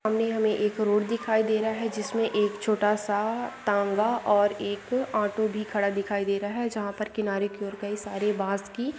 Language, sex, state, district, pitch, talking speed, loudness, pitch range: Hindi, female, West Bengal, Dakshin Dinajpur, 210 Hz, 205 wpm, -27 LUFS, 205-220 Hz